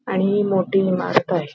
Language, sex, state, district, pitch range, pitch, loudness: Marathi, female, Maharashtra, Nagpur, 185-195 Hz, 190 Hz, -19 LUFS